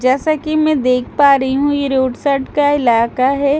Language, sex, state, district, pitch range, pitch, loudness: Hindi, female, Delhi, New Delhi, 260-290 Hz, 275 Hz, -14 LUFS